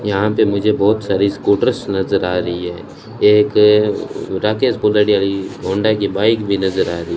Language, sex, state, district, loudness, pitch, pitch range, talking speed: Hindi, male, Rajasthan, Bikaner, -16 LUFS, 100 Hz, 95-105 Hz, 165 wpm